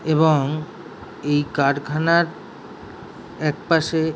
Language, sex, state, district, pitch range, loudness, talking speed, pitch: Bengali, male, West Bengal, Jhargram, 145-160 Hz, -21 LUFS, 70 wpm, 155 Hz